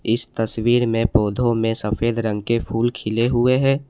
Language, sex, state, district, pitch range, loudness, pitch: Hindi, male, Assam, Kamrup Metropolitan, 115-120 Hz, -20 LUFS, 115 Hz